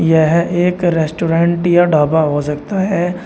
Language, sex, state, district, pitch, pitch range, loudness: Hindi, male, Uttar Pradesh, Shamli, 170 Hz, 160-175 Hz, -14 LUFS